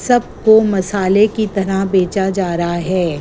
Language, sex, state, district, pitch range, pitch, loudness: Hindi, female, Gujarat, Gandhinagar, 185-210 Hz, 195 Hz, -15 LUFS